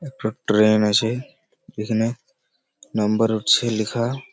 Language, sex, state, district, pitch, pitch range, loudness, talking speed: Bengali, male, West Bengal, Malda, 110 Hz, 110-120 Hz, -21 LUFS, 110 wpm